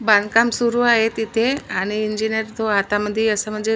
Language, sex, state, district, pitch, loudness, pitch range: Marathi, female, Maharashtra, Nagpur, 220 Hz, -19 LUFS, 210-225 Hz